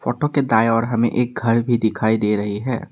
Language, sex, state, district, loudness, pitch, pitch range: Hindi, male, Assam, Sonitpur, -19 LUFS, 115 Hz, 110-120 Hz